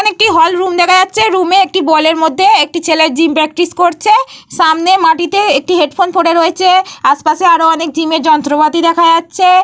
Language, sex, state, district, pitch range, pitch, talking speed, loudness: Bengali, female, Jharkhand, Jamtara, 320-370 Hz, 335 Hz, 175 wpm, -10 LUFS